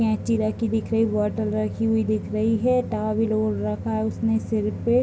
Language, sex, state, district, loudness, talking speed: Hindi, female, Bihar, Bhagalpur, -23 LUFS, 200 wpm